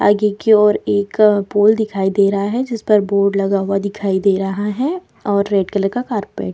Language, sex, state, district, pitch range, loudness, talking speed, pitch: Hindi, female, Bihar, Vaishali, 195-210 Hz, -16 LUFS, 230 wpm, 200 Hz